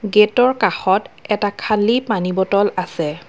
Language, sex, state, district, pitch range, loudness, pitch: Assamese, female, Assam, Kamrup Metropolitan, 185-215 Hz, -17 LUFS, 205 Hz